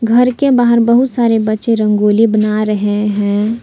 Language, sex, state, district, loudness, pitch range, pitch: Hindi, female, Jharkhand, Palamu, -12 LUFS, 210-235 Hz, 220 Hz